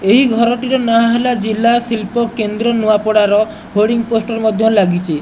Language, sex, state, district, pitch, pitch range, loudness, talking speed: Odia, male, Odisha, Nuapada, 225 Hz, 215-235 Hz, -14 LUFS, 150 wpm